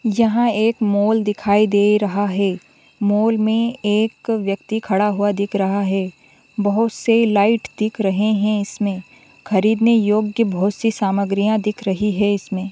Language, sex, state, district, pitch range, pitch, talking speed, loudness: Hindi, female, Andhra Pradesh, Chittoor, 200-220 Hz, 210 Hz, 150 wpm, -18 LUFS